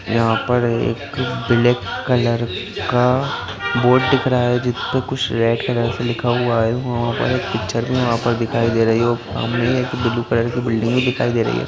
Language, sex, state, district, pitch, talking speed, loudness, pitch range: Hindi, male, Bihar, Jahanabad, 120 Hz, 205 wpm, -18 LUFS, 115-125 Hz